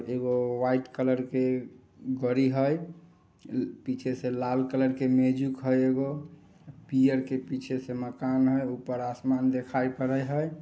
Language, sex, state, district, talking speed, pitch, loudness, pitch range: Maithili, male, Bihar, Samastipur, 140 wpm, 130 Hz, -28 LUFS, 130-135 Hz